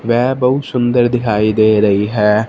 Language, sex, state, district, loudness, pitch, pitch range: Hindi, male, Punjab, Fazilka, -14 LUFS, 115 Hz, 105-125 Hz